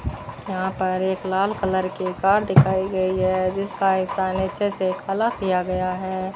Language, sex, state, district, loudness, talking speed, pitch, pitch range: Hindi, female, Rajasthan, Bikaner, -22 LUFS, 170 wpm, 190 Hz, 185-195 Hz